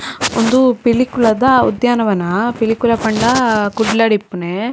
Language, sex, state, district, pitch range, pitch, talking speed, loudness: Tulu, female, Karnataka, Dakshina Kannada, 215-245 Hz, 230 Hz, 90 wpm, -14 LUFS